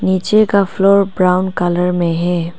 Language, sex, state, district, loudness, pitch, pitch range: Hindi, female, Arunachal Pradesh, Papum Pare, -14 LUFS, 185 Hz, 175-195 Hz